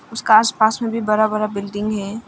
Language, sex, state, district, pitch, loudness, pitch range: Hindi, female, Arunachal Pradesh, Longding, 215 Hz, -18 LUFS, 210-225 Hz